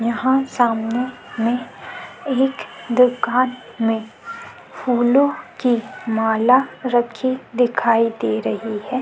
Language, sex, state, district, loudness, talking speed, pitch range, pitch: Hindi, female, Chhattisgarh, Sukma, -19 LUFS, 100 wpm, 230-255 Hz, 245 Hz